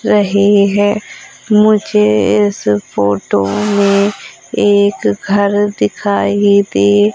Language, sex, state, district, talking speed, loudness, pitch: Hindi, female, Madhya Pradesh, Umaria, 90 wpm, -12 LUFS, 195 Hz